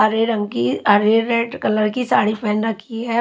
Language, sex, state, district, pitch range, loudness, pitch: Hindi, female, Haryana, Rohtak, 210-230 Hz, -18 LUFS, 220 Hz